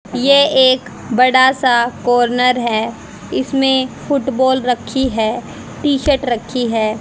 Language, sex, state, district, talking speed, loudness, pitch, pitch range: Hindi, female, Haryana, Rohtak, 110 wpm, -15 LUFS, 255 Hz, 240-265 Hz